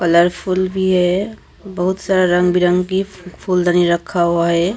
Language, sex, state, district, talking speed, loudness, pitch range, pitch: Hindi, female, Maharashtra, Gondia, 140 wpm, -16 LUFS, 175-185 Hz, 180 Hz